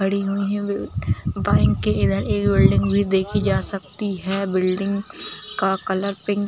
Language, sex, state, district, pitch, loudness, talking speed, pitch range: Hindi, female, Uttar Pradesh, Ghazipur, 195 Hz, -21 LUFS, 165 wpm, 185-200 Hz